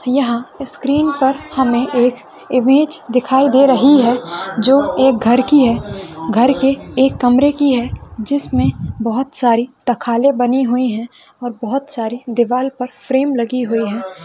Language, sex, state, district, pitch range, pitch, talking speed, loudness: Hindi, female, Maharashtra, Solapur, 235-270 Hz, 255 Hz, 160 wpm, -15 LUFS